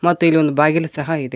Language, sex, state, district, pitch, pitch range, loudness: Kannada, male, Karnataka, Koppal, 160 Hz, 150-165 Hz, -16 LUFS